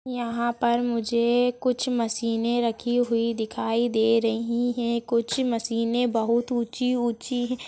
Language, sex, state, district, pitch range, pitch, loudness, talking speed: Hindi, female, Chhattisgarh, Jashpur, 230-245 Hz, 235 Hz, -25 LUFS, 125 wpm